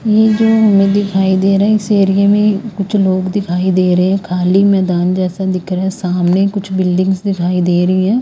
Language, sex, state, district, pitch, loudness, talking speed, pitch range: Hindi, female, Haryana, Rohtak, 190 Hz, -13 LUFS, 210 wpm, 185-200 Hz